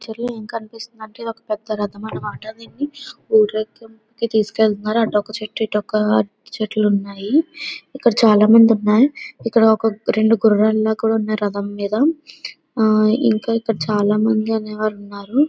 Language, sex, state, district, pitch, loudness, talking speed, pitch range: Telugu, female, Andhra Pradesh, Visakhapatnam, 220 Hz, -18 LUFS, 145 wpm, 215-230 Hz